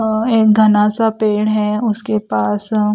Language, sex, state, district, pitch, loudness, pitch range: Hindi, female, Chhattisgarh, Raipur, 215 Hz, -14 LUFS, 210-220 Hz